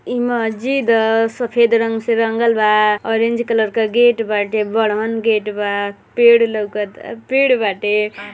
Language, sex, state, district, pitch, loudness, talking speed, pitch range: Bhojpuri, female, Uttar Pradesh, Gorakhpur, 225 Hz, -16 LUFS, 150 wpm, 210-235 Hz